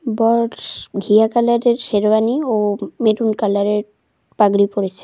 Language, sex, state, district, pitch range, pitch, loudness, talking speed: Bengali, female, West Bengal, Cooch Behar, 205-230 Hz, 220 Hz, -17 LUFS, 105 wpm